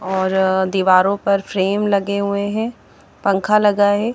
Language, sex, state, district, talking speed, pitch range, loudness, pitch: Hindi, female, Haryana, Charkhi Dadri, 145 wpm, 190-205 Hz, -17 LUFS, 200 Hz